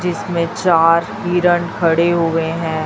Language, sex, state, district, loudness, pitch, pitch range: Hindi, female, Chhattisgarh, Raipur, -16 LUFS, 170 Hz, 165-175 Hz